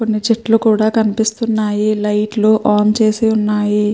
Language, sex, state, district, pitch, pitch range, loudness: Telugu, female, Andhra Pradesh, Krishna, 215 Hz, 210-220 Hz, -14 LUFS